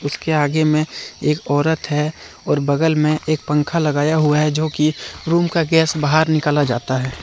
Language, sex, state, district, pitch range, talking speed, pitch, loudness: Hindi, male, Jharkhand, Deoghar, 145-160 Hz, 190 wpm, 155 Hz, -18 LUFS